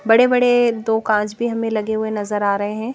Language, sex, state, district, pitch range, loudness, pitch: Hindi, female, Madhya Pradesh, Bhopal, 210-235 Hz, -18 LUFS, 220 Hz